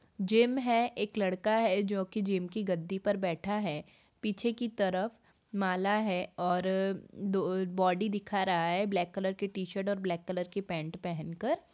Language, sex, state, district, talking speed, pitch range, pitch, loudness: Hindi, female, Bihar, Samastipur, 175 wpm, 185-210 Hz, 195 Hz, -32 LUFS